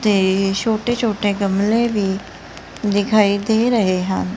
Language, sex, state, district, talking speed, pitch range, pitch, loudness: Punjabi, female, Punjab, Kapurthala, 125 wpm, 195-220 Hz, 205 Hz, -18 LUFS